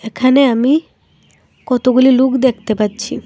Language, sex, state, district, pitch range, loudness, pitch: Bengali, female, Tripura, Dhalai, 230-260 Hz, -13 LUFS, 255 Hz